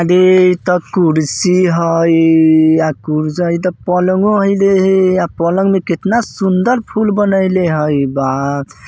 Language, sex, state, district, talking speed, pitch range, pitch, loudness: Bajjika, male, Bihar, Vaishali, 150 wpm, 160-190 Hz, 180 Hz, -12 LUFS